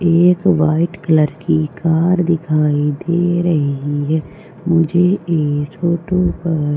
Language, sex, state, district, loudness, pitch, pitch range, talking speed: Hindi, female, Madhya Pradesh, Umaria, -16 LUFS, 165 Hz, 155-175 Hz, 115 wpm